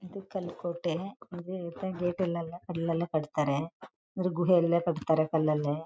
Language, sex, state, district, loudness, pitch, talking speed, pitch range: Kannada, female, Karnataka, Chamarajanagar, -31 LUFS, 170 Hz, 100 wpm, 160-180 Hz